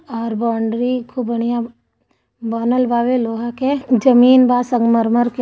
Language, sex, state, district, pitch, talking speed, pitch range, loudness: Hindi, female, Bihar, Gopalganj, 240 Hz, 110 wpm, 230-250 Hz, -16 LUFS